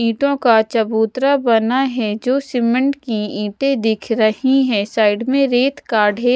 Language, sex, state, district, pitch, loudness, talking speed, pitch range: Hindi, female, Odisha, Sambalpur, 235 Hz, -16 LUFS, 160 wpm, 220-265 Hz